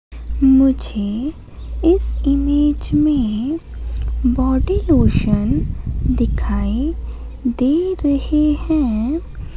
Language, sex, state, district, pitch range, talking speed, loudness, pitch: Hindi, female, Madhya Pradesh, Katni, 255-300 Hz, 65 wpm, -18 LUFS, 280 Hz